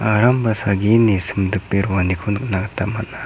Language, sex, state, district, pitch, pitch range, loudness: Garo, male, Meghalaya, South Garo Hills, 105 Hz, 100-110 Hz, -18 LUFS